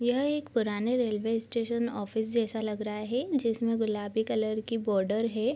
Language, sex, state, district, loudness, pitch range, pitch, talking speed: Hindi, female, Bihar, East Champaran, -30 LUFS, 215-235 Hz, 225 Hz, 170 wpm